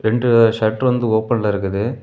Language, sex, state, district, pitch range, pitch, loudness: Tamil, male, Tamil Nadu, Kanyakumari, 110-120 Hz, 115 Hz, -17 LUFS